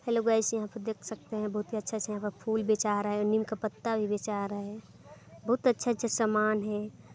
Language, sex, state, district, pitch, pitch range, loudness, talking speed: Hindi, female, Chhattisgarh, Balrampur, 215 Hz, 210-225 Hz, -31 LUFS, 270 wpm